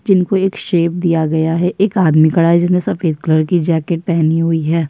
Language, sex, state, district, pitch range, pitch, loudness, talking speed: Hindi, female, Uttar Pradesh, Jyotiba Phule Nagar, 160-180 Hz, 170 Hz, -14 LUFS, 220 wpm